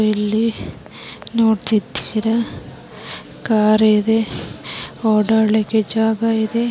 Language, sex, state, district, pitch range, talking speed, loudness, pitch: Kannada, female, Karnataka, Bijapur, 215-225 Hz, 65 wpm, -18 LUFS, 220 Hz